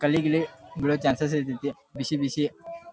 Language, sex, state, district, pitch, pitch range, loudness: Kannada, male, Karnataka, Dharwad, 150 Hz, 140-160 Hz, -27 LUFS